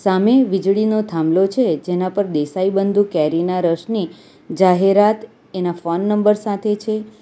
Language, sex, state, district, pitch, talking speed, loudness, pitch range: Gujarati, female, Gujarat, Valsad, 195 Hz, 125 wpm, -17 LUFS, 180-210 Hz